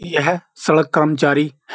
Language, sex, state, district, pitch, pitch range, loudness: Hindi, male, Uttar Pradesh, Jyotiba Phule Nagar, 155 Hz, 150-165 Hz, -17 LUFS